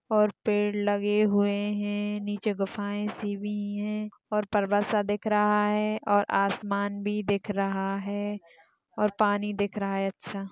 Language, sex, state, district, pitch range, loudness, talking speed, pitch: Hindi, female, Maharashtra, Sindhudurg, 200-210 Hz, -28 LUFS, 160 wpm, 205 Hz